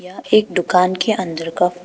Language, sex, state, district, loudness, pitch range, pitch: Hindi, female, Arunachal Pradesh, Papum Pare, -17 LUFS, 180-185 Hz, 180 Hz